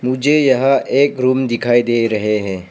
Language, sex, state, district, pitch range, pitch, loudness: Hindi, male, Arunachal Pradesh, Papum Pare, 115-135 Hz, 125 Hz, -15 LUFS